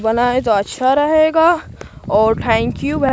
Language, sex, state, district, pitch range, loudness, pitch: Hindi, male, Bihar, Katihar, 225-305 Hz, -15 LUFS, 255 Hz